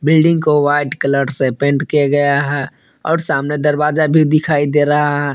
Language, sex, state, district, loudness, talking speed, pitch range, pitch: Hindi, male, Jharkhand, Palamu, -14 LUFS, 190 wpm, 140-155 Hz, 145 Hz